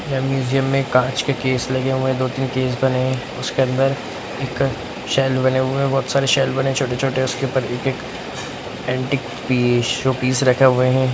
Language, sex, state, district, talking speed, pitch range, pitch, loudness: Hindi, male, Bihar, Araria, 190 wpm, 130-135 Hz, 130 Hz, -19 LUFS